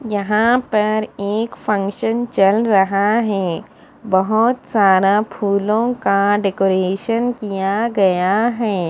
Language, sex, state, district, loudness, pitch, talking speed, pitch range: Hindi, female, Punjab, Fazilka, -17 LUFS, 210 Hz, 100 wpm, 195-230 Hz